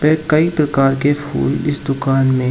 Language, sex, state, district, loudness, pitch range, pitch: Hindi, male, Uttar Pradesh, Shamli, -16 LUFS, 135-150 Hz, 145 Hz